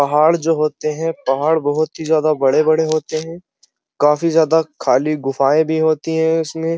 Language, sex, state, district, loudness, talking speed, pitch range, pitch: Hindi, male, Uttar Pradesh, Muzaffarnagar, -16 LUFS, 170 wpm, 150-160 Hz, 155 Hz